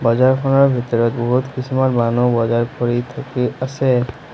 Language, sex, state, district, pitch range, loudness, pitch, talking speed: Assamese, male, Assam, Sonitpur, 120-130 Hz, -17 LUFS, 125 Hz, 125 wpm